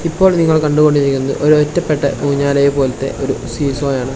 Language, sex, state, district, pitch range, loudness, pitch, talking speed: Malayalam, male, Kerala, Kasaragod, 135-150 Hz, -14 LUFS, 140 Hz, 145 wpm